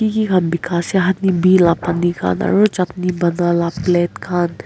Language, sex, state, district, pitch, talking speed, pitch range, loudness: Nagamese, female, Nagaland, Kohima, 175 Hz, 180 wpm, 170-185 Hz, -16 LUFS